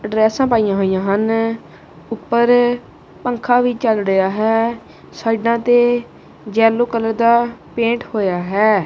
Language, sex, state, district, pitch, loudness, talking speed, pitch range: Punjabi, male, Punjab, Kapurthala, 225 Hz, -16 LUFS, 120 wpm, 210-240 Hz